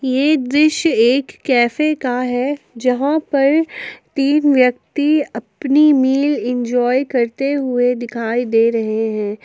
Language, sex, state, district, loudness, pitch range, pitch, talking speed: Hindi, female, Jharkhand, Palamu, -16 LUFS, 245-290 Hz, 260 Hz, 120 wpm